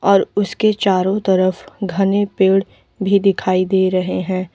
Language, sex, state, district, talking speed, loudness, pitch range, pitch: Hindi, female, Uttar Pradesh, Lalitpur, 145 wpm, -17 LUFS, 185-200 Hz, 195 Hz